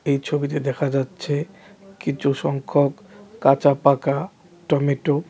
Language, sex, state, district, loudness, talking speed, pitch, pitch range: Bengali, male, Tripura, West Tripura, -21 LUFS, 115 wpm, 145 Hz, 140-175 Hz